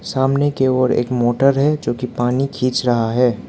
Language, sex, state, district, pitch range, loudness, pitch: Hindi, male, Arunachal Pradesh, Lower Dibang Valley, 120-135 Hz, -17 LUFS, 130 Hz